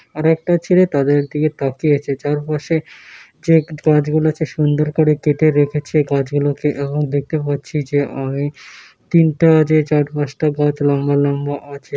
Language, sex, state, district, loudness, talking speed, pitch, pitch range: Bengali, male, West Bengal, Malda, -17 LUFS, 165 wpm, 150 Hz, 145-155 Hz